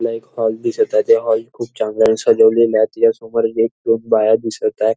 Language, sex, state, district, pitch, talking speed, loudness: Marathi, male, Maharashtra, Nagpur, 115 Hz, 195 wpm, -16 LUFS